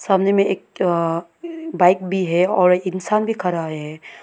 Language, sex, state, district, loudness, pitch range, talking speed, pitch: Hindi, female, Arunachal Pradesh, Lower Dibang Valley, -19 LUFS, 170-200 Hz, 155 wpm, 185 Hz